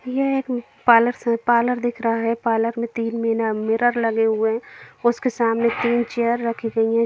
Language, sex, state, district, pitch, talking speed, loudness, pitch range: Hindi, female, Bihar, Jamui, 235 Hz, 205 wpm, -21 LUFS, 230-240 Hz